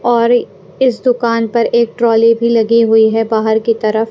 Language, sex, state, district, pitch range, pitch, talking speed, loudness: Hindi, female, Punjab, Pathankot, 225-235 Hz, 230 Hz, 190 wpm, -12 LUFS